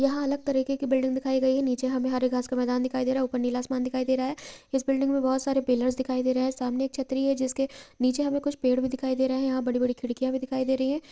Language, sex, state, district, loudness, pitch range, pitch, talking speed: Maithili, female, Bihar, Purnia, -27 LUFS, 255-270 Hz, 260 Hz, 310 wpm